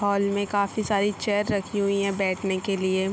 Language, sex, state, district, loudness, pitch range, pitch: Hindi, female, Bihar, Araria, -25 LUFS, 195-205 Hz, 200 Hz